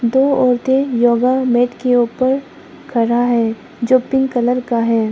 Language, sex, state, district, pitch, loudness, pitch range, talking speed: Hindi, female, Arunachal Pradesh, Lower Dibang Valley, 245 Hz, -15 LUFS, 235-260 Hz, 150 wpm